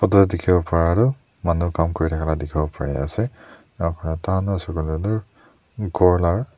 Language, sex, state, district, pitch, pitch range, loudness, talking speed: Nagamese, male, Nagaland, Dimapur, 85 Hz, 80-100 Hz, -21 LUFS, 175 wpm